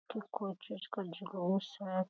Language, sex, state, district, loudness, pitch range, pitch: Hindi, female, Bihar, Lakhisarai, -39 LUFS, 185-205 Hz, 195 Hz